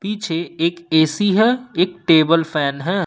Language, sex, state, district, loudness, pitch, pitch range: Hindi, male, Jharkhand, Ranchi, -17 LUFS, 170 Hz, 160-195 Hz